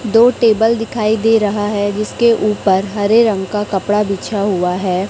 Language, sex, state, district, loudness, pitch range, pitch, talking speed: Hindi, female, Chhattisgarh, Raipur, -15 LUFS, 200-225 Hz, 210 Hz, 175 wpm